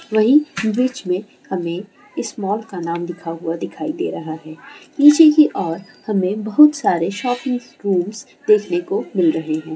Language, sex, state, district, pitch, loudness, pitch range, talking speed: Hindi, female, Andhra Pradesh, Guntur, 205 Hz, -18 LUFS, 170-255 Hz, 165 wpm